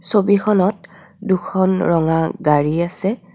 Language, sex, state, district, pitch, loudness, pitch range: Assamese, female, Assam, Kamrup Metropolitan, 185 Hz, -17 LUFS, 170-200 Hz